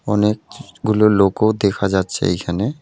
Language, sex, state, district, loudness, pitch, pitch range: Bengali, male, West Bengal, Alipurduar, -17 LUFS, 105 Hz, 100-105 Hz